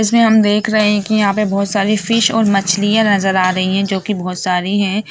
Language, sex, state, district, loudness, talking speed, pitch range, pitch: Hindi, female, Bihar, Sitamarhi, -14 LUFS, 260 wpm, 195-215 Hz, 205 Hz